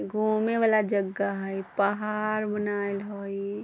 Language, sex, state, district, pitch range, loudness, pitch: Bajjika, female, Bihar, Vaishali, 200-215 Hz, -27 LUFS, 205 Hz